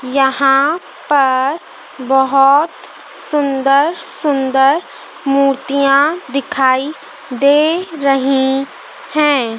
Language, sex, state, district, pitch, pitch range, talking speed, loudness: Hindi, male, Madhya Pradesh, Dhar, 275 Hz, 270-295 Hz, 55 wpm, -14 LUFS